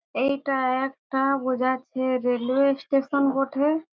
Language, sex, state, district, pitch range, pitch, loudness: Bengali, female, West Bengal, Jhargram, 260-275 Hz, 270 Hz, -24 LUFS